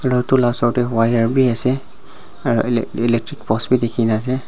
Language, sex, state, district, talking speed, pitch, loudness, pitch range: Nagamese, male, Nagaland, Dimapur, 200 wpm, 120 Hz, -17 LUFS, 115-130 Hz